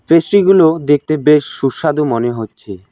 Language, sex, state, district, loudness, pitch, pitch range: Bengali, male, West Bengal, Alipurduar, -13 LUFS, 150 Hz, 120-160 Hz